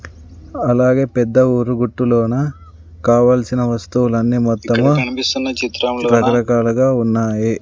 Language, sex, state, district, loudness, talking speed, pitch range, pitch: Telugu, male, Andhra Pradesh, Sri Satya Sai, -15 LUFS, 80 wpm, 115-125 Hz, 120 Hz